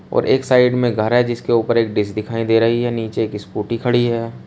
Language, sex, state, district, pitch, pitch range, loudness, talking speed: Hindi, male, Uttar Pradesh, Shamli, 115 Hz, 110-120 Hz, -17 LUFS, 270 wpm